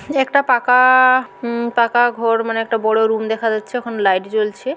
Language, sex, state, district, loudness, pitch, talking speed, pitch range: Bengali, female, West Bengal, Jhargram, -16 LUFS, 235 Hz, 190 wpm, 220-250 Hz